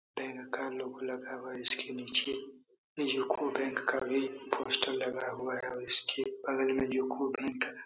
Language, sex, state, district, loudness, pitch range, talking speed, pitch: Hindi, male, Bihar, Supaul, -34 LUFS, 130-135 Hz, 185 wpm, 130 Hz